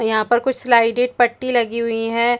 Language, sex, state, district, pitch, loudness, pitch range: Hindi, female, Chhattisgarh, Bastar, 235 Hz, -18 LUFS, 230-245 Hz